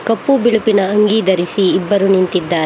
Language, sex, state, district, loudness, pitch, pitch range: Kannada, female, Karnataka, Bangalore, -13 LUFS, 200 Hz, 185-220 Hz